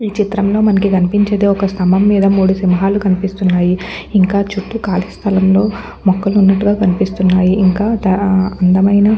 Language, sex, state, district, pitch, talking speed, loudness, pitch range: Telugu, female, Andhra Pradesh, Anantapur, 195 Hz, 110 wpm, -13 LUFS, 190-205 Hz